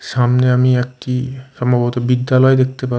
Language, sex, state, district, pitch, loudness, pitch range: Bengali, male, Odisha, Khordha, 125 Hz, -15 LUFS, 125-130 Hz